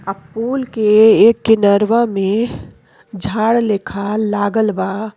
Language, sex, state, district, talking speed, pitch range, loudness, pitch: Bhojpuri, female, Uttar Pradesh, Deoria, 115 wpm, 200-225 Hz, -15 LUFS, 215 Hz